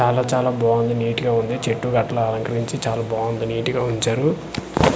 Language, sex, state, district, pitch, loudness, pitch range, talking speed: Telugu, male, Andhra Pradesh, Manyam, 115 Hz, -21 LUFS, 115-125 Hz, 195 wpm